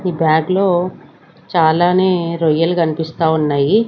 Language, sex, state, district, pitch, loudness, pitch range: Telugu, female, Andhra Pradesh, Sri Satya Sai, 165 Hz, -15 LUFS, 160-180 Hz